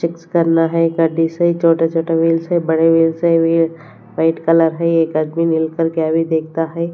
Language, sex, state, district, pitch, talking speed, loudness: Hindi, female, Punjab, Kapurthala, 165 Hz, 165 wpm, -15 LUFS